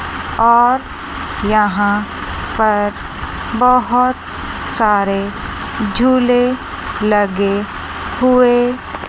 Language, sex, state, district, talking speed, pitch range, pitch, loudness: Hindi, female, Chandigarh, Chandigarh, 55 wpm, 205-250 Hz, 225 Hz, -15 LUFS